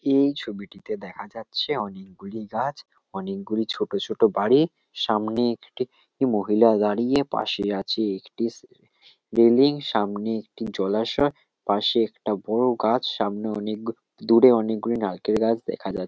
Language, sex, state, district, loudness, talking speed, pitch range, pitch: Bengali, male, West Bengal, North 24 Parganas, -24 LUFS, 135 wpm, 105-115 Hz, 110 Hz